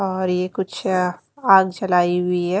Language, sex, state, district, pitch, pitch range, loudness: Hindi, female, Maharashtra, Mumbai Suburban, 185 Hz, 180-190 Hz, -19 LUFS